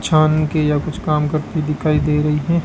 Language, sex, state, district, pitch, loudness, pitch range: Hindi, male, Rajasthan, Bikaner, 155 Hz, -18 LUFS, 150-155 Hz